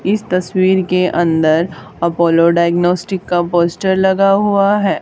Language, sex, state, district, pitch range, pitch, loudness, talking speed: Hindi, female, Haryana, Charkhi Dadri, 170-190 Hz, 180 Hz, -14 LUFS, 130 wpm